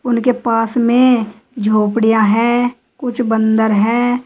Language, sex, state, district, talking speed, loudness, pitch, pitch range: Hindi, female, Uttar Pradesh, Saharanpur, 115 wpm, -14 LUFS, 235 Hz, 220-245 Hz